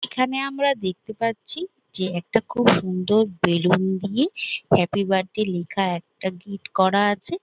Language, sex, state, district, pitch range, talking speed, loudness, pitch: Bengali, female, West Bengal, Jhargram, 185-240 Hz, 145 wpm, -23 LUFS, 200 Hz